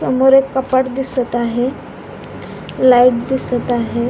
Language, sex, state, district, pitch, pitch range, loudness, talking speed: Marathi, female, Maharashtra, Pune, 255 Hz, 240-265 Hz, -15 LUFS, 115 wpm